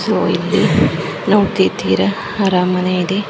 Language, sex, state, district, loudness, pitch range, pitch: Kannada, male, Karnataka, Mysore, -15 LUFS, 180-195 Hz, 185 Hz